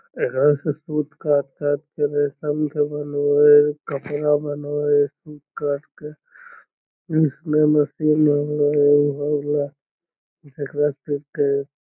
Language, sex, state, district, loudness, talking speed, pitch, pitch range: Magahi, male, Bihar, Lakhisarai, -20 LUFS, 85 wpm, 145 Hz, 145-150 Hz